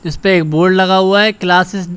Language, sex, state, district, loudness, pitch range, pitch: Hindi, male, Uttar Pradesh, Shamli, -11 LUFS, 175-195 Hz, 185 Hz